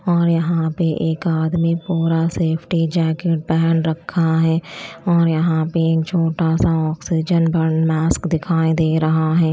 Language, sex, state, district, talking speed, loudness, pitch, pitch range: Hindi, female, Chandigarh, Chandigarh, 145 wpm, -18 LUFS, 165 Hz, 160-170 Hz